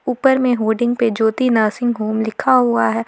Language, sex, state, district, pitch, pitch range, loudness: Hindi, female, Jharkhand, Garhwa, 235 Hz, 220-250 Hz, -16 LUFS